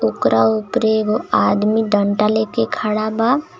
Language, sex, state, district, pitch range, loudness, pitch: Bhojpuri, male, Jharkhand, Palamu, 205-220 Hz, -17 LUFS, 215 Hz